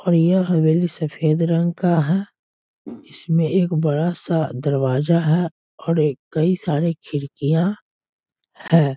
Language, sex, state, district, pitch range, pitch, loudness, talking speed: Hindi, male, Bihar, Sitamarhi, 155-175 Hz, 165 Hz, -20 LUFS, 120 wpm